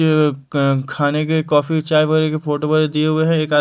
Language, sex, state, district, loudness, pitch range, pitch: Hindi, male, Delhi, New Delhi, -17 LUFS, 150-155 Hz, 155 Hz